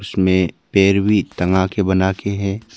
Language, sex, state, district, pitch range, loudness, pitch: Hindi, male, Arunachal Pradesh, Papum Pare, 95-100 Hz, -17 LUFS, 95 Hz